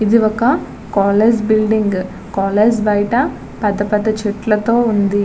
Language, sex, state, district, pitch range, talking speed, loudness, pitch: Telugu, female, Andhra Pradesh, Visakhapatnam, 205-225 Hz, 105 wpm, -15 LUFS, 215 Hz